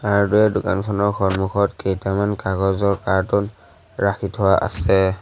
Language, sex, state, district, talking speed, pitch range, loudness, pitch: Assamese, male, Assam, Sonitpur, 105 wpm, 95-100 Hz, -20 LUFS, 100 Hz